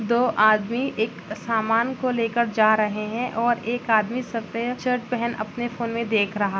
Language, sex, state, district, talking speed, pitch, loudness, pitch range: Hindi, female, Chhattisgarh, Raigarh, 190 wpm, 230 Hz, -23 LUFS, 215-240 Hz